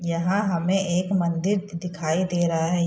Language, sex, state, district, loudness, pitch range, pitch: Hindi, female, Bihar, Saharsa, -24 LUFS, 170-190 Hz, 175 Hz